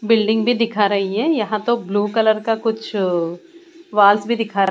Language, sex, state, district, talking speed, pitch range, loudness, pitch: Hindi, female, Bihar, Katihar, 180 wpm, 205-230 Hz, -18 LUFS, 220 Hz